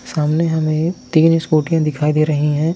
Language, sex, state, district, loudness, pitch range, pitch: Hindi, male, Bihar, Sitamarhi, -16 LUFS, 150-165 Hz, 155 Hz